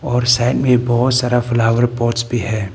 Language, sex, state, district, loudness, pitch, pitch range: Hindi, male, Arunachal Pradesh, Papum Pare, -16 LUFS, 120 Hz, 120-125 Hz